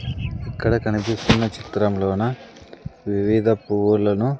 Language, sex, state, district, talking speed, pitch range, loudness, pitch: Telugu, male, Andhra Pradesh, Sri Satya Sai, 70 wpm, 105-115 Hz, -21 LUFS, 110 Hz